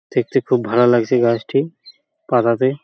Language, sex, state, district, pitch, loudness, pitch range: Bengali, male, West Bengal, Purulia, 125 Hz, -17 LUFS, 120-140 Hz